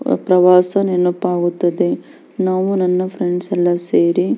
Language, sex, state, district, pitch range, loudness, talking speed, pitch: Kannada, female, Karnataka, Belgaum, 175-190 Hz, -16 LUFS, 95 wpm, 180 Hz